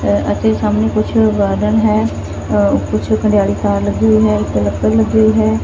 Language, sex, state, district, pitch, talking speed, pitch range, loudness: Punjabi, female, Punjab, Fazilka, 105 Hz, 170 wpm, 100-110 Hz, -14 LUFS